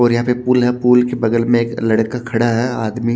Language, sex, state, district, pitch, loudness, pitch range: Hindi, male, Haryana, Jhajjar, 120 Hz, -16 LUFS, 115-125 Hz